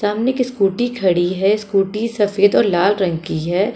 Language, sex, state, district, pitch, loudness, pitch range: Hindi, female, Delhi, New Delhi, 200 Hz, -17 LUFS, 190-220 Hz